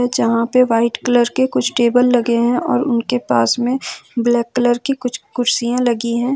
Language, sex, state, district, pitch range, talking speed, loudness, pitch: Hindi, female, Jharkhand, Ranchi, 235-250 Hz, 190 wpm, -16 LUFS, 245 Hz